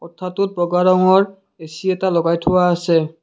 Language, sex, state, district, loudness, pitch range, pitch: Assamese, male, Assam, Kamrup Metropolitan, -17 LUFS, 170-185 Hz, 180 Hz